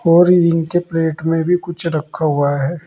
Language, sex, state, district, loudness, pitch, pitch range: Hindi, male, Uttar Pradesh, Saharanpur, -16 LUFS, 165 Hz, 155-175 Hz